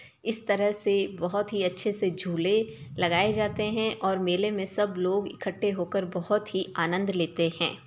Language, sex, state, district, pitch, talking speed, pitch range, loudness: Hindi, female, Uttar Pradesh, Ghazipur, 195 Hz, 175 wpm, 180-210 Hz, -28 LUFS